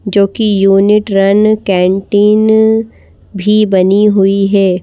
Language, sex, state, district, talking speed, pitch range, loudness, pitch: Hindi, female, Madhya Pradesh, Bhopal, 110 wpm, 195-215 Hz, -10 LUFS, 200 Hz